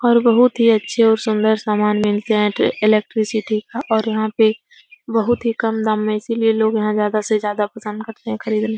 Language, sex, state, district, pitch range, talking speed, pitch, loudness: Hindi, female, Uttar Pradesh, Etah, 215-225 Hz, 200 wpm, 220 Hz, -18 LUFS